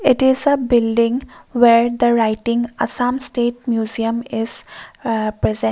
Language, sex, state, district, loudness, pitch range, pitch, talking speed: English, female, Assam, Kamrup Metropolitan, -18 LUFS, 225-245 Hz, 235 Hz, 135 wpm